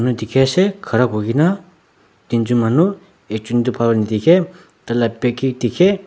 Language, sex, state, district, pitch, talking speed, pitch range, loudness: Nagamese, male, Nagaland, Dimapur, 125 Hz, 140 wpm, 115-175 Hz, -17 LUFS